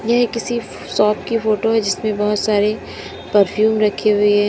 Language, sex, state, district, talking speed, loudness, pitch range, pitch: Hindi, female, Uttar Pradesh, Lalitpur, 175 wpm, -17 LUFS, 205-225 Hz, 215 Hz